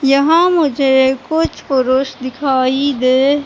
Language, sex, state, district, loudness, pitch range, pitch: Hindi, female, Madhya Pradesh, Katni, -14 LUFS, 260-290 Hz, 275 Hz